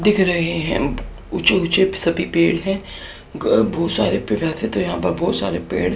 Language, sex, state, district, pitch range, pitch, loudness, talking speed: Hindi, female, Haryana, Charkhi Dadri, 170-190 Hz, 180 Hz, -19 LUFS, 170 wpm